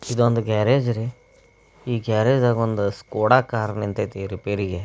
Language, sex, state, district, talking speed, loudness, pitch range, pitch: Kannada, male, Karnataka, Belgaum, 135 wpm, -22 LUFS, 100-120 Hz, 110 Hz